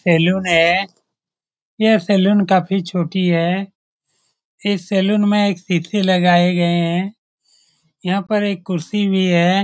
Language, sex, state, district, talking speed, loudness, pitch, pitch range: Hindi, male, Bihar, Saran, 130 wpm, -17 LUFS, 190 Hz, 175-200 Hz